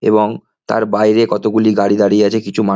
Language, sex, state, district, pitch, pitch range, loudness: Bengali, male, West Bengal, Kolkata, 105 Hz, 100-110 Hz, -14 LUFS